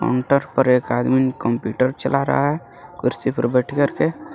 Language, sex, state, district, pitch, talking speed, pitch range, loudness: Hindi, male, Jharkhand, Garhwa, 130 Hz, 165 wpm, 125-140 Hz, -20 LUFS